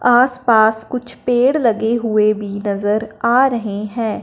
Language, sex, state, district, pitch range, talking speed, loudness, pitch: Hindi, male, Punjab, Fazilka, 210-245 Hz, 155 wpm, -16 LUFS, 225 Hz